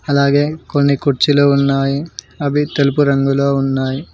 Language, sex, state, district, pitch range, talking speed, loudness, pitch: Telugu, male, Telangana, Mahabubabad, 135-145 Hz, 115 wpm, -15 LUFS, 140 Hz